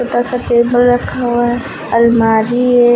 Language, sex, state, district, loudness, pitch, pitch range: Hindi, female, Uttar Pradesh, Lucknow, -13 LUFS, 240 Hz, 235-245 Hz